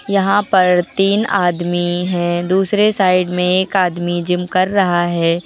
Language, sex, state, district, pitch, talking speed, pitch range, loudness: Hindi, female, Uttar Pradesh, Lucknow, 180 Hz, 155 wpm, 175-195 Hz, -15 LUFS